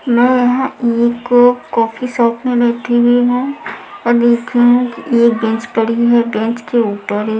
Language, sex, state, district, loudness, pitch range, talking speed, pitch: Hindi, female, Maharashtra, Mumbai Suburban, -13 LUFS, 235-245 Hz, 155 wpm, 240 Hz